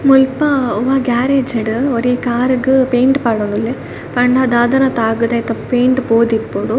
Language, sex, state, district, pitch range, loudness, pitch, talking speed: Tulu, female, Karnataka, Dakshina Kannada, 230-265 Hz, -14 LUFS, 245 Hz, 140 wpm